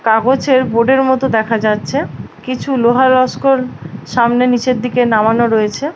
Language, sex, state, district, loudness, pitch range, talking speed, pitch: Bengali, female, West Bengal, Paschim Medinipur, -13 LUFS, 220-260 Hz, 130 wpm, 245 Hz